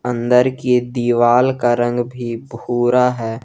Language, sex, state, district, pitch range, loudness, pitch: Hindi, male, Jharkhand, Garhwa, 120-125 Hz, -16 LUFS, 120 Hz